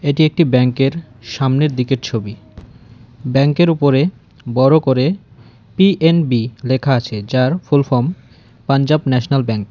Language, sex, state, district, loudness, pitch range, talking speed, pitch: Bengali, male, West Bengal, Cooch Behar, -15 LUFS, 120-150 Hz, 135 wpm, 130 Hz